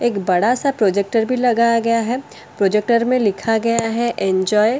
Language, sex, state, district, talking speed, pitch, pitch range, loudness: Hindi, female, Delhi, New Delhi, 185 wpm, 230 Hz, 210-240 Hz, -17 LUFS